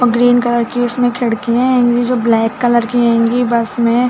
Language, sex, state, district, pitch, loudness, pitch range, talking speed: Hindi, female, Chhattisgarh, Bilaspur, 240 Hz, -13 LUFS, 235-245 Hz, 175 wpm